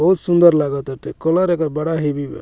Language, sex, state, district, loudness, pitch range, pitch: Bhojpuri, male, Bihar, Muzaffarpur, -17 LUFS, 145-175 Hz, 160 Hz